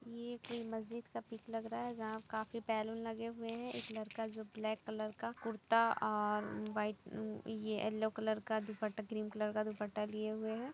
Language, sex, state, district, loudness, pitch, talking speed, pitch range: Hindi, female, Jharkhand, Jamtara, -41 LUFS, 220 Hz, 195 wpm, 215-230 Hz